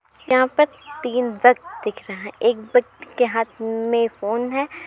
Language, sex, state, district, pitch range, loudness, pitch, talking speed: Hindi, female, Uttar Pradesh, Jalaun, 230-275 Hz, -21 LUFS, 245 Hz, 185 wpm